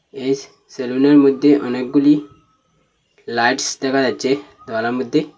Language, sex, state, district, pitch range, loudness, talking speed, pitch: Bengali, male, Assam, Hailakandi, 130-145 Hz, -17 LUFS, 110 wpm, 140 Hz